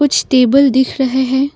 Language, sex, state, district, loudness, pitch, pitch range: Hindi, female, Assam, Kamrup Metropolitan, -12 LUFS, 265 Hz, 260-275 Hz